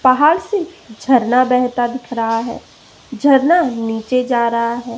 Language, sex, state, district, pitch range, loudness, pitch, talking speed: Hindi, female, Madhya Pradesh, Umaria, 235-270 Hz, -16 LUFS, 250 Hz, 145 wpm